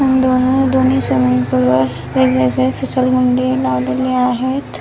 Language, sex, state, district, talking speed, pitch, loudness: Marathi, female, Maharashtra, Nagpur, 125 wpm, 245 Hz, -15 LUFS